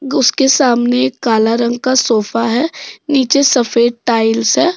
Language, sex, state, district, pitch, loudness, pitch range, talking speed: Hindi, female, Jharkhand, Deoghar, 245 Hz, -13 LUFS, 230-270 Hz, 140 wpm